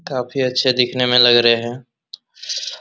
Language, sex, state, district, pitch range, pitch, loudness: Hindi, male, Bihar, Araria, 120-130 Hz, 125 Hz, -16 LUFS